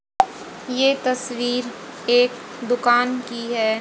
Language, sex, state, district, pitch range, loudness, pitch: Hindi, female, Haryana, Jhajjar, 240-250 Hz, -21 LUFS, 245 Hz